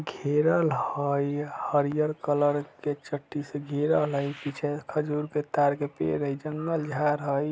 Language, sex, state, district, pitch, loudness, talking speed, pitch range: Bajjika, male, Bihar, Vaishali, 145 Hz, -28 LUFS, 150 wpm, 145-150 Hz